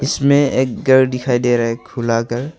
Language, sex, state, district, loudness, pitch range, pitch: Hindi, male, Arunachal Pradesh, Longding, -16 LUFS, 120-135 Hz, 125 Hz